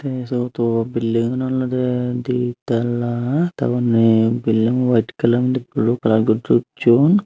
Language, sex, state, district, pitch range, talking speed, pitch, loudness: Chakma, male, Tripura, Unakoti, 115-125 Hz, 125 wpm, 120 Hz, -18 LUFS